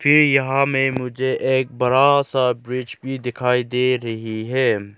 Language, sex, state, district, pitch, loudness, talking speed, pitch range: Hindi, male, Arunachal Pradesh, Lower Dibang Valley, 130 Hz, -19 LUFS, 155 wpm, 125-135 Hz